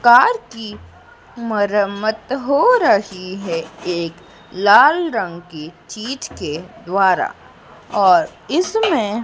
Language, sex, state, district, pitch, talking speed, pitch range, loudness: Hindi, female, Madhya Pradesh, Dhar, 210 Hz, 95 wpm, 180-260 Hz, -17 LUFS